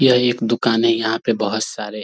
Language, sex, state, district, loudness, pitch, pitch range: Hindi, male, Bihar, Darbhanga, -18 LUFS, 115 Hz, 110-115 Hz